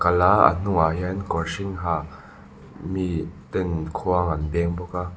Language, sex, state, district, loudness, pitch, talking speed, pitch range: Mizo, male, Mizoram, Aizawl, -23 LUFS, 90 Hz, 175 wpm, 85-90 Hz